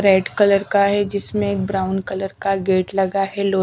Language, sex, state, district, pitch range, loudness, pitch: Hindi, female, Bihar, West Champaran, 190-200 Hz, -19 LUFS, 195 Hz